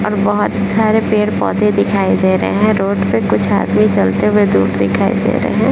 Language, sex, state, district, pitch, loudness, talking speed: Hindi, male, Bihar, Jahanabad, 200 Hz, -14 LUFS, 200 wpm